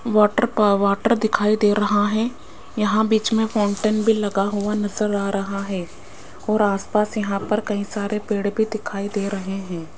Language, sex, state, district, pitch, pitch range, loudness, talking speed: Hindi, female, Rajasthan, Jaipur, 210 Hz, 200-215 Hz, -21 LUFS, 180 wpm